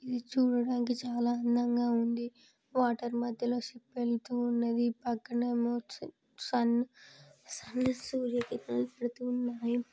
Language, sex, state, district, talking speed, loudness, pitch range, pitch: Telugu, female, Telangana, Nalgonda, 65 wpm, -33 LUFS, 235-245 Hz, 240 Hz